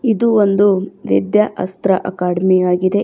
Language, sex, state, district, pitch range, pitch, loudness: Kannada, female, Karnataka, Bidar, 185-210 Hz, 190 Hz, -15 LUFS